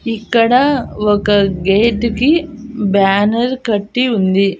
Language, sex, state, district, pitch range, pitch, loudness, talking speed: Telugu, female, Andhra Pradesh, Annamaya, 200-245 Hz, 225 Hz, -14 LUFS, 90 wpm